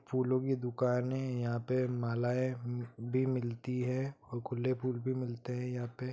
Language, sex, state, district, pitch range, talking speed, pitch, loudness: Hindi, male, Bihar, Gopalganj, 120-130 Hz, 185 wpm, 125 Hz, -35 LUFS